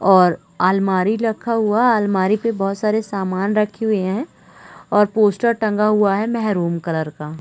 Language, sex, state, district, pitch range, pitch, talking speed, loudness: Hindi, female, Chhattisgarh, Raigarh, 190-220 Hz, 210 Hz, 170 wpm, -18 LUFS